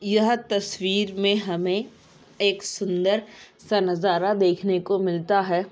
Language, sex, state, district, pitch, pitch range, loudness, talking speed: Hindi, female, Uttarakhand, Tehri Garhwal, 200 Hz, 185-205 Hz, -23 LUFS, 125 wpm